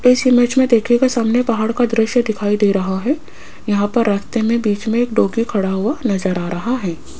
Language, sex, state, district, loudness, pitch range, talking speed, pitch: Hindi, female, Rajasthan, Jaipur, -17 LUFS, 205-245 Hz, 215 wpm, 225 Hz